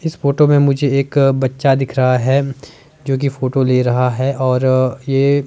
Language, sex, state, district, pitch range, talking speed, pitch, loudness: Hindi, male, Himachal Pradesh, Shimla, 130-140 Hz, 185 wpm, 135 Hz, -15 LUFS